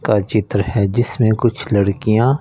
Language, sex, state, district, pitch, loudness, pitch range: Hindi, male, Punjab, Fazilka, 110 Hz, -16 LUFS, 100-120 Hz